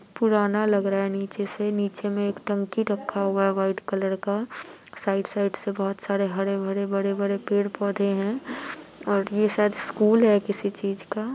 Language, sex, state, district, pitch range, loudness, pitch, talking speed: Hindi, female, Bihar, Muzaffarpur, 195-210 Hz, -25 LUFS, 200 Hz, 195 wpm